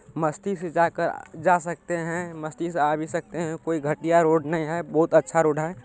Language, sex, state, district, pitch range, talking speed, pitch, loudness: Maithili, male, Bihar, Supaul, 155-170 Hz, 215 wpm, 165 Hz, -24 LUFS